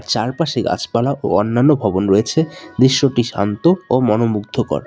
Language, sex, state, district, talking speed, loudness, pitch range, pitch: Bengali, male, West Bengal, Alipurduar, 125 wpm, -16 LUFS, 105-140 Hz, 120 Hz